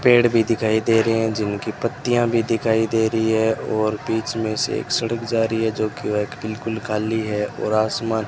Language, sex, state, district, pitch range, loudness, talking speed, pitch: Hindi, male, Rajasthan, Bikaner, 110-115 Hz, -21 LUFS, 215 wpm, 110 Hz